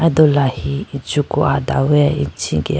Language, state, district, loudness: Idu Mishmi, Arunachal Pradesh, Lower Dibang Valley, -17 LUFS